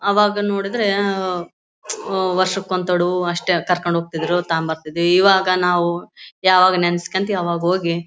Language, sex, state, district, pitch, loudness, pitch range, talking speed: Kannada, female, Karnataka, Bellary, 180 Hz, -18 LUFS, 175-190 Hz, 135 wpm